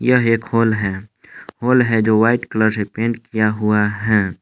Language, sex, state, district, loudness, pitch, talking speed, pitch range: Hindi, male, Jharkhand, Palamu, -17 LUFS, 110 Hz, 175 wpm, 105-115 Hz